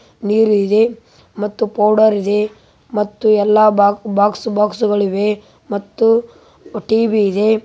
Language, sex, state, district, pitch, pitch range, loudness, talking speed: Kannada, female, Karnataka, Raichur, 210 Hz, 205-220 Hz, -15 LUFS, 95 wpm